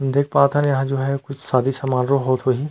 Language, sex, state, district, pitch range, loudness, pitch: Chhattisgarhi, male, Chhattisgarh, Rajnandgaon, 130-140 Hz, -19 LUFS, 135 Hz